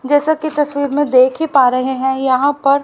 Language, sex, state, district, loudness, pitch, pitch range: Hindi, female, Haryana, Rohtak, -14 LUFS, 280 Hz, 265-290 Hz